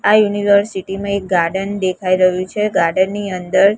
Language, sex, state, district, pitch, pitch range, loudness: Gujarati, female, Gujarat, Gandhinagar, 195 Hz, 185-200 Hz, -16 LUFS